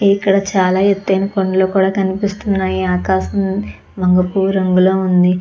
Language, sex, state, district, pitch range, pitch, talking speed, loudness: Telugu, female, Andhra Pradesh, Chittoor, 185-195 Hz, 190 Hz, 110 wpm, -15 LUFS